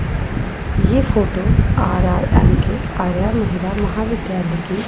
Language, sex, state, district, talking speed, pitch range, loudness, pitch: Hindi, female, Punjab, Pathankot, 100 wpm, 185-215 Hz, -18 LUFS, 195 Hz